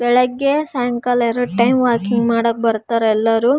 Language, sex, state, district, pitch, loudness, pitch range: Kannada, female, Karnataka, Raichur, 240 Hz, -17 LUFS, 230-250 Hz